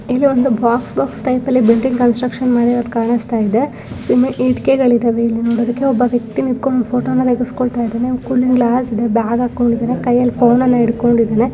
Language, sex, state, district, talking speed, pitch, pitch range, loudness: Kannada, female, Karnataka, Bellary, 150 wpm, 245 Hz, 235-255 Hz, -15 LUFS